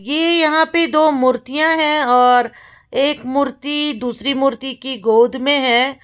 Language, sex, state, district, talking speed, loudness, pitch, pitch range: Hindi, female, Uttar Pradesh, Lalitpur, 150 wpm, -15 LUFS, 275 Hz, 250-300 Hz